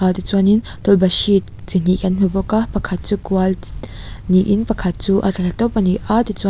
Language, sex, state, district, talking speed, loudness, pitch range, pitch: Mizo, female, Mizoram, Aizawl, 185 wpm, -17 LUFS, 185-205 Hz, 195 Hz